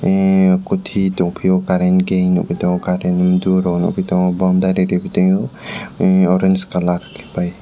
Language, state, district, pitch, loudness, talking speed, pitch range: Kokborok, Tripura, West Tripura, 95 Hz, -16 LUFS, 125 wpm, 90-95 Hz